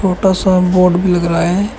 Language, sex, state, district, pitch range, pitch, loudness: Hindi, male, Uttar Pradesh, Shamli, 180-190 Hz, 185 Hz, -13 LUFS